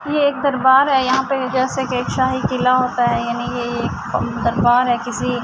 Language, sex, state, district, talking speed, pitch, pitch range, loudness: Urdu, female, Andhra Pradesh, Anantapur, 200 wpm, 255 Hz, 240-265 Hz, -18 LUFS